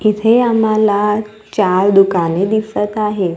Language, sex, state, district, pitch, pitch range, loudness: Marathi, female, Maharashtra, Gondia, 210 Hz, 195-215 Hz, -14 LUFS